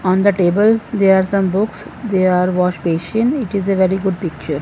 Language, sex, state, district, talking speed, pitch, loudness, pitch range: English, female, Punjab, Fazilka, 220 wpm, 190 Hz, -16 LUFS, 180-205 Hz